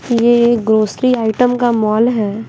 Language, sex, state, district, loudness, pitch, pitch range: Hindi, female, Bihar, Patna, -14 LUFS, 235 Hz, 220-240 Hz